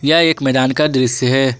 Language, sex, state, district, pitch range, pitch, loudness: Hindi, male, Jharkhand, Ranchi, 130-150 Hz, 135 Hz, -14 LUFS